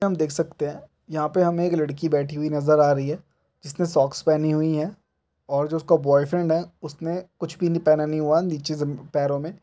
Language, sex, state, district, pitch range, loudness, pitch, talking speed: Hindi, male, Chhattisgarh, Korba, 145-170 Hz, -23 LUFS, 155 Hz, 230 wpm